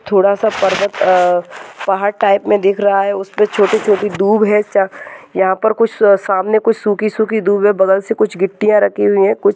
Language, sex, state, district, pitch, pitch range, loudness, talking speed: Hindi, female, Maharashtra, Nagpur, 200 Hz, 195-215 Hz, -14 LUFS, 180 wpm